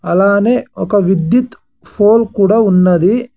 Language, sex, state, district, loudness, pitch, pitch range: Telugu, male, Andhra Pradesh, Sri Satya Sai, -12 LUFS, 205 Hz, 190-230 Hz